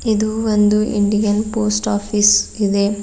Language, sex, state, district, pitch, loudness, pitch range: Kannada, female, Karnataka, Bidar, 210 Hz, -16 LUFS, 205-215 Hz